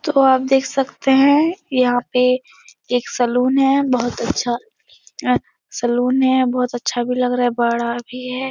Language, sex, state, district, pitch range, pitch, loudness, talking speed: Hindi, female, Bihar, Supaul, 245-270 Hz, 250 Hz, -18 LUFS, 190 wpm